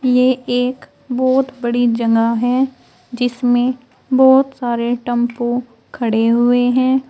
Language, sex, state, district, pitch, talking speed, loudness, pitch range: Hindi, female, Uttar Pradesh, Shamli, 245 Hz, 110 wpm, -16 LUFS, 240-255 Hz